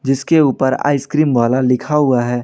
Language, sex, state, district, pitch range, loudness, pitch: Hindi, male, Jharkhand, Ranchi, 125-145 Hz, -15 LUFS, 135 Hz